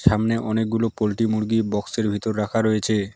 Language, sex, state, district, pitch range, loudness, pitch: Bengali, male, West Bengal, Alipurduar, 105-115 Hz, -22 LUFS, 110 Hz